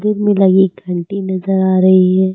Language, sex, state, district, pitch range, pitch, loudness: Hindi, female, Uttar Pradesh, Lucknow, 185-195 Hz, 190 Hz, -13 LUFS